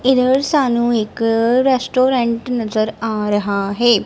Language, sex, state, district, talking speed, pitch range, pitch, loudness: Punjabi, female, Punjab, Kapurthala, 120 wpm, 220-255 Hz, 235 Hz, -16 LUFS